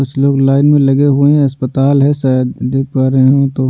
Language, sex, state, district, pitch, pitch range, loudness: Hindi, male, Bihar, Patna, 135 Hz, 130-140 Hz, -11 LUFS